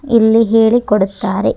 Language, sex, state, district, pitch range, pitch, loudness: Kannada, male, Karnataka, Dharwad, 205-230 Hz, 225 Hz, -12 LUFS